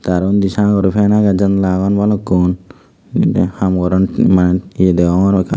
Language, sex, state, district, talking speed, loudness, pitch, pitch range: Chakma, male, Tripura, Dhalai, 160 wpm, -14 LUFS, 95 Hz, 90-100 Hz